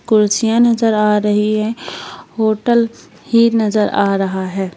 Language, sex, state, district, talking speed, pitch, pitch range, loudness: Hindi, female, Uttar Pradesh, Lalitpur, 140 wpm, 215 Hz, 210-230 Hz, -15 LUFS